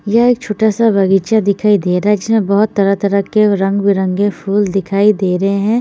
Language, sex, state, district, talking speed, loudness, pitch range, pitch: Hindi, female, Bihar, Patna, 205 wpm, -13 LUFS, 195-215 Hz, 200 Hz